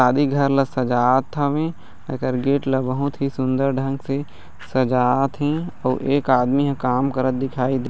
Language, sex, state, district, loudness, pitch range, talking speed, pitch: Chhattisgarhi, male, Chhattisgarh, Raigarh, -21 LUFS, 130-140 Hz, 175 wpm, 135 Hz